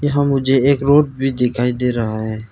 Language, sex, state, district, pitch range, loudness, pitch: Hindi, male, Arunachal Pradesh, Lower Dibang Valley, 120-140 Hz, -16 LUFS, 130 Hz